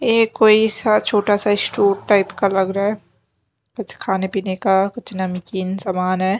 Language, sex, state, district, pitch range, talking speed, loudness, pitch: Hindi, female, Bihar, Kaimur, 190-215 Hz, 170 wpm, -17 LUFS, 200 Hz